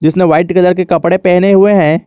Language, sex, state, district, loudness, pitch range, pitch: Hindi, male, Jharkhand, Garhwa, -9 LUFS, 170-185 Hz, 180 Hz